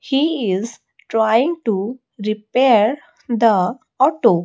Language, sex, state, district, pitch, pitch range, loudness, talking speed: English, female, Odisha, Malkangiri, 230 Hz, 215-270 Hz, -18 LUFS, 95 wpm